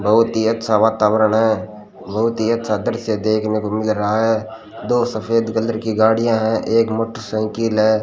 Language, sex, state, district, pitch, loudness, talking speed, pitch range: Hindi, male, Rajasthan, Bikaner, 110 Hz, -18 LUFS, 170 wpm, 110-115 Hz